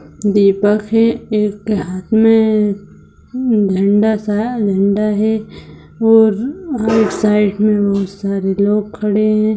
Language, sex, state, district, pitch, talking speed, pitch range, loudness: Hindi, female, Bihar, Saharsa, 210 Hz, 95 wpm, 200-220 Hz, -14 LUFS